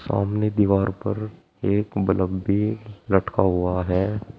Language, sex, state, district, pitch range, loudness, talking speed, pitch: Hindi, male, Uttar Pradesh, Saharanpur, 95-105 Hz, -23 LUFS, 125 wpm, 100 Hz